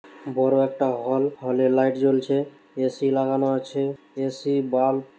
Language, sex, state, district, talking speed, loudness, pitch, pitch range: Bengali, male, West Bengal, Malda, 150 wpm, -23 LUFS, 135 Hz, 130-135 Hz